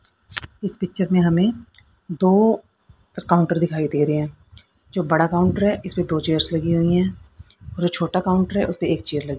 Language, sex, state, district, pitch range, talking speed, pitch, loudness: Hindi, female, Haryana, Rohtak, 150-185 Hz, 190 wpm, 170 Hz, -20 LUFS